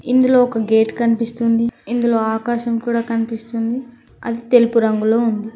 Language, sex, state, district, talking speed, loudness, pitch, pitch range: Telugu, female, Telangana, Mahabubabad, 130 wpm, -17 LUFS, 230 Hz, 225-240 Hz